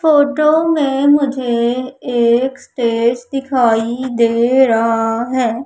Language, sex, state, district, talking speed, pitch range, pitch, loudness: Hindi, female, Madhya Pradesh, Umaria, 95 wpm, 235-270 Hz, 250 Hz, -15 LUFS